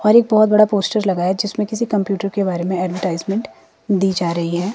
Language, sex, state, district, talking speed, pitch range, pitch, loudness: Hindi, female, Himachal Pradesh, Shimla, 215 wpm, 185-215 Hz, 195 Hz, -18 LUFS